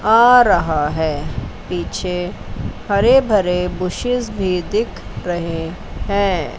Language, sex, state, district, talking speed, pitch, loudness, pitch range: Hindi, female, Chandigarh, Chandigarh, 100 wpm, 180 Hz, -18 LUFS, 165-205 Hz